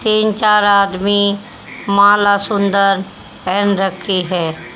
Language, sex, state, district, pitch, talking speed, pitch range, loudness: Hindi, female, Haryana, Rohtak, 200 Hz, 100 wpm, 190-205 Hz, -14 LUFS